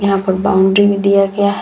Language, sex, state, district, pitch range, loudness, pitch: Hindi, female, Bihar, Vaishali, 195-200 Hz, -13 LUFS, 200 Hz